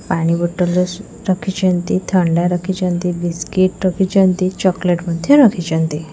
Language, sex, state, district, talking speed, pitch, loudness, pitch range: Odia, female, Odisha, Khordha, 100 wpm, 180 Hz, -16 LUFS, 175-190 Hz